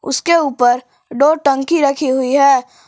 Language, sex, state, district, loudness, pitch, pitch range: Hindi, female, Jharkhand, Palamu, -14 LUFS, 275 Hz, 260-295 Hz